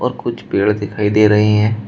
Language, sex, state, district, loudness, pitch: Hindi, male, Uttar Pradesh, Shamli, -15 LUFS, 105 Hz